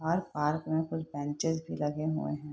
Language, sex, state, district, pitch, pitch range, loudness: Hindi, female, Bihar, Saharsa, 155 Hz, 150-160 Hz, -33 LUFS